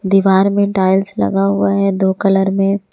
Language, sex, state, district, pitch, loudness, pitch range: Hindi, female, Jharkhand, Ranchi, 195 Hz, -14 LUFS, 190-195 Hz